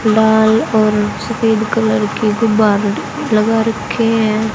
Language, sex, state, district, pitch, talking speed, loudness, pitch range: Hindi, female, Haryana, Jhajjar, 220 Hz, 120 wpm, -14 LUFS, 215-225 Hz